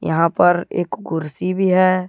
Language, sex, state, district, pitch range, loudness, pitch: Hindi, male, Jharkhand, Deoghar, 165-185 Hz, -18 LUFS, 180 Hz